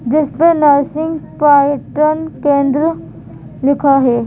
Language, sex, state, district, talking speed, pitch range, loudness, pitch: Hindi, female, Madhya Pradesh, Bhopal, 100 wpm, 280-310 Hz, -13 LUFS, 290 Hz